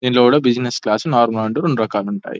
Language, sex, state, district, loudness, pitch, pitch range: Telugu, male, Telangana, Nalgonda, -17 LUFS, 120 Hz, 110-125 Hz